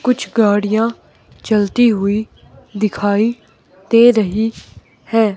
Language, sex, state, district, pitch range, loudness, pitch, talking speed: Hindi, female, Himachal Pradesh, Shimla, 205-230 Hz, -15 LUFS, 220 Hz, 90 wpm